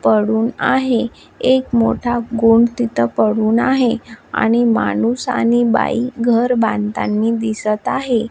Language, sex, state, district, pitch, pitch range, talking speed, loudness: Marathi, female, Maharashtra, Washim, 235 Hz, 220-245 Hz, 115 wpm, -16 LUFS